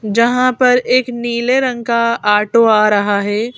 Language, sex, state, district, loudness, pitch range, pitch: Hindi, female, Madhya Pradesh, Bhopal, -13 LUFS, 215-250 Hz, 235 Hz